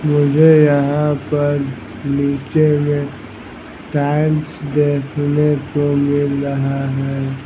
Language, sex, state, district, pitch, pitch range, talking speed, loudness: Hindi, male, Bihar, Patna, 145 Hz, 140-150 Hz, 90 wpm, -16 LUFS